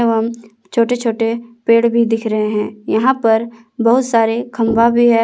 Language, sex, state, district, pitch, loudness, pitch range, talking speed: Hindi, female, Jharkhand, Palamu, 230 Hz, -15 LUFS, 225-235 Hz, 170 wpm